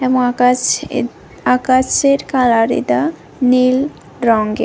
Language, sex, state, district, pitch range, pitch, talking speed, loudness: Bengali, female, Tripura, West Tripura, 245-260 Hz, 255 Hz, 90 wpm, -15 LUFS